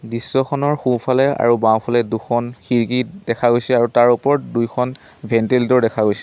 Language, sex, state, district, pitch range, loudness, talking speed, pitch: Assamese, male, Assam, Sonitpur, 115-130 Hz, -17 LUFS, 165 wpm, 120 Hz